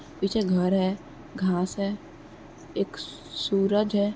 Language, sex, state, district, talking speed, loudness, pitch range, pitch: Hindi, female, Uttar Pradesh, Muzaffarnagar, 115 wpm, -27 LUFS, 185-205 Hz, 195 Hz